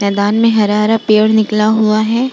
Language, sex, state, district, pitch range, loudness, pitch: Hindi, female, Bihar, Vaishali, 210-220 Hz, -12 LUFS, 215 Hz